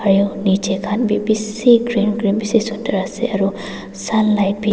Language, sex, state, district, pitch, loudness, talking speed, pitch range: Nagamese, female, Nagaland, Dimapur, 210 Hz, -17 LUFS, 165 wpm, 200-220 Hz